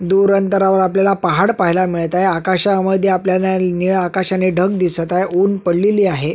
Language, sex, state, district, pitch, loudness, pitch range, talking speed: Marathi, male, Maharashtra, Sindhudurg, 190 Hz, -15 LUFS, 180-195 Hz, 170 wpm